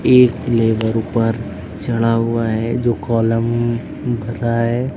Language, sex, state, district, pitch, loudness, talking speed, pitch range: Hindi, female, Uttar Pradesh, Lucknow, 115 Hz, -17 LUFS, 135 wpm, 115-120 Hz